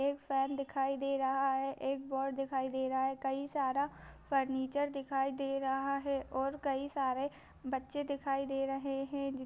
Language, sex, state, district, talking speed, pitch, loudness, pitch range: Hindi, female, Chhattisgarh, Raigarh, 180 wpm, 275 Hz, -36 LUFS, 270-275 Hz